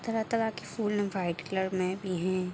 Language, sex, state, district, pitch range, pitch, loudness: Hindi, female, Bihar, Araria, 185-215 Hz, 190 Hz, -31 LUFS